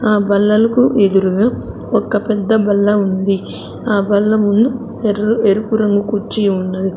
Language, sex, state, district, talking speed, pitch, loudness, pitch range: Telugu, female, Andhra Pradesh, Sri Satya Sai, 130 wpm, 210 Hz, -15 LUFS, 200-220 Hz